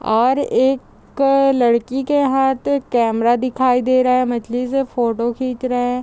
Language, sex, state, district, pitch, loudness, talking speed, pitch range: Hindi, female, Bihar, Gopalganj, 255 Hz, -17 LUFS, 200 wpm, 240-270 Hz